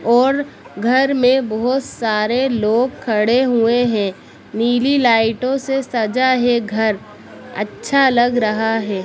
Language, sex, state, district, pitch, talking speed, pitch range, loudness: Hindi, female, Bihar, Samastipur, 240 Hz, 125 wpm, 220-260 Hz, -17 LUFS